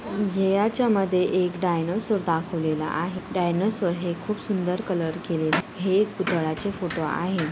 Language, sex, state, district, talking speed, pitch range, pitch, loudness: Marathi, female, Maharashtra, Nagpur, 130 wpm, 170-195 Hz, 180 Hz, -25 LUFS